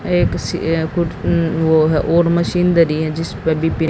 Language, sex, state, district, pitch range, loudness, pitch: Hindi, female, Haryana, Jhajjar, 160-170 Hz, -16 LUFS, 165 Hz